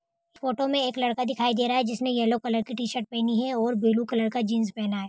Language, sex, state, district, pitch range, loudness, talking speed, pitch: Hindi, female, Jharkhand, Jamtara, 230-255 Hz, -26 LUFS, 270 wpm, 240 Hz